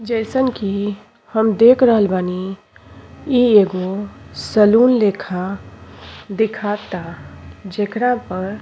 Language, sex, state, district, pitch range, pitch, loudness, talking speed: Bhojpuri, female, Uttar Pradesh, Ghazipur, 195-230 Hz, 210 Hz, -17 LUFS, 95 wpm